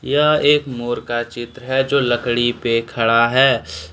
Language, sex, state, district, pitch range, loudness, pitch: Hindi, male, Jharkhand, Deoghar, 120-135 Hz, -17 LUFS, 120 Hz